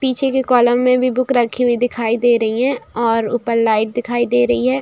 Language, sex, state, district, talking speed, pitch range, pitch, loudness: Hindi, female, Bihar, Saran, 235 wpm, 235-255 Hz, 245 Hz, -16 LUFS